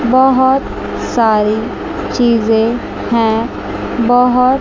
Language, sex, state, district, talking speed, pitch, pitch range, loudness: Hindi, female, Chandigarh, Chandigarh, 65 wpm, 240 Hz, 225-255 Hz, -14 LUFS